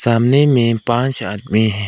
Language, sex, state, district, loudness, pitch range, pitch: Hindi, male, Arunachal Pradesh, Lower Dibang Valley, -15 LUFS, 110-125 Hz, 115 Hz